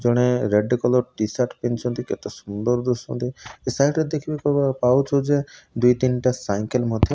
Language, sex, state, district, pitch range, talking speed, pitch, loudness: Odia, male, Odisha, Malkangiri, 120-135 Hz, 150 wpm, 125 Hz, -22 LUFS